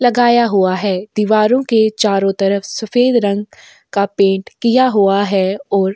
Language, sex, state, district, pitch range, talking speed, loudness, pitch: Hindi, female, Uttar Pradesh, Jyotiba Phule Nagar, 195-235 Hz, 140 wpm, -14 LUFS, 205 Hz